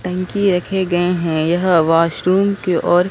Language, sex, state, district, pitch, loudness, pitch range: Hindi, female, Bihar, Katihar, 180 Hz, -16 LUFS, 170-185 Hz